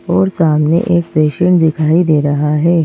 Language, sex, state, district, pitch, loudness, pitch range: Hindi, female, Madhya Pradesh, Bhopal, 160 Hz, -12 LUFS, 155-170 Hz